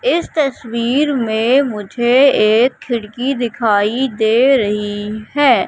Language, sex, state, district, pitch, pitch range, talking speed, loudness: Hindi, female, Madhya Pradesh, Katni, 240 Hz, 220-270 Hz, 105 wpm, -15 LUFS